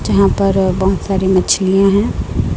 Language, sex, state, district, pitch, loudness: Hindi, male, Chhattisgarh, Raipur, 190 Hz, -14 LUFS